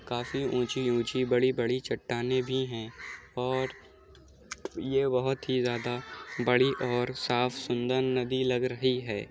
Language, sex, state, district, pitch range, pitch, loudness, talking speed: Hindi, male, Uttar Pradesh, Muzaffarnagar, 120-130 Hz, 125 Hz, -30 LUFS, 120 wpm